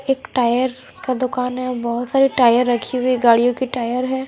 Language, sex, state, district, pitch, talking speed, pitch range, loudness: Hindi, female, Punjab, Fazilka, 250 Hz, 210 wpm, 240-260 Hz, -18 LUFS